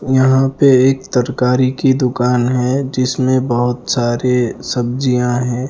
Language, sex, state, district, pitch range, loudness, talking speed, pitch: Hindi, male, Punjab, Fazilka, 125-130 Hz, -15 LUFS, 125 wpm, 125 Hz